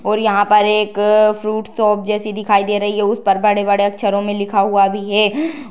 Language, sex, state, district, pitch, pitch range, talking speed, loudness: Hindi, female, Bihar, Darbhanga, 210 Hz, 205-215 Hz, 210 wpm, -15 LUFS